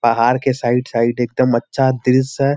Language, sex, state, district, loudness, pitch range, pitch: Hindi, male, Bihar, Sitamarhi, -16 LUFS, 120-130 Hz, 125 Hz